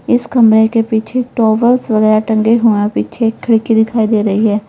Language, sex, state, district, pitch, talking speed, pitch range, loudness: Hindi, female, Uttar Pradesh, Lalitpur, 220 Hz, 180 wpm, 215-230 Hz, -12 LUFS